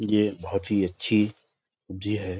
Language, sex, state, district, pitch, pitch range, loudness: Hindi, male, Uttar Pradesh, Budaun, 100 Hz, 95-105 Hz, -26 LUFS